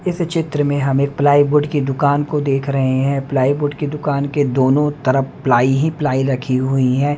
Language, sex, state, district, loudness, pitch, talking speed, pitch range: Hindi, male, Haryana, Rohtak, -17 LUFS, 140 Hz, 215 wpm, 135-145 Hz